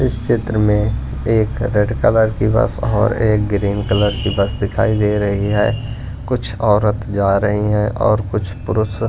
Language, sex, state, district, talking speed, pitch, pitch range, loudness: Hindi, male, Punjab, Pathankot, 170 wpm, 105 Hz, 105-110 Hz, -17 LUFS